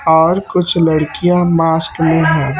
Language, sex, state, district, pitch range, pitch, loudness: Hindi, male, Chhattisgarh, Raipur, 160-175 Hz, 165 Hz, -13 LUFS